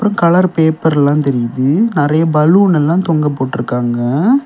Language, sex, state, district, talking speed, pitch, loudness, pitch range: Tamil, male, Tamil Nadu, Kanyakumari, 110 wpm, 150 Hz, -13 LUFS, 135-175 Hz